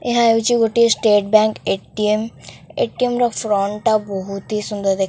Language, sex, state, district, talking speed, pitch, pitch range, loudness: Odia, female, Odisha, Khordha, 200 wpm, 215 Hz, 200-230 Hz, -18 LUFS